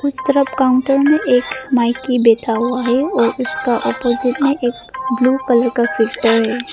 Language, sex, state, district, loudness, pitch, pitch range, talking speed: Hindi, female, Arunachal Pradesh, Papum Pare, -15 LUFS, 255 Hz, 240-265 Hz, 170 wpm